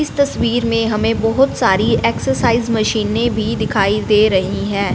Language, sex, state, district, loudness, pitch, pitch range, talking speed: Hindi, female, Punjab, Fazilka, -16 LUFS, 220 Hz, 200-230 Hz, 155 wpm